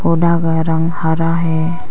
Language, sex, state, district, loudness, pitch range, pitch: Hindi, female, Arunachal Pradesh, Papum Pare, -16 LUFS, 160-170 Hz, 165 Hz